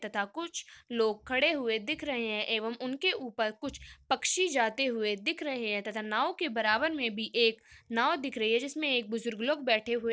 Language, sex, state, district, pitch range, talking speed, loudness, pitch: Hindi, female, Uttar Pradesh, Muzaffarnagar, 220-285 Hz, 215 wpm, -31 LUFS, 235 Hz